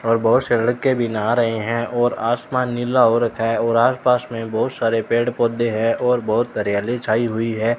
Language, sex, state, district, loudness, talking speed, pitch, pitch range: Hindi, male, Rajasthan, Bikaner, -19 LUFS, 215 wpm, 115 Hz, 115-120 Hz